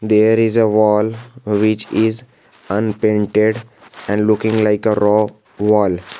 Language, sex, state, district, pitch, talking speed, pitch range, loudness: English, male, Jharkhand, Garhwa, 110 Hz, 125 wpm, 105-110 Hz, -16 LUFS